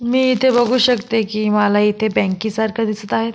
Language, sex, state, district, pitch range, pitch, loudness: Marathi, female, Maharashtra, Solapur, 210-240 Hz, 220 Hz, -17 LUFS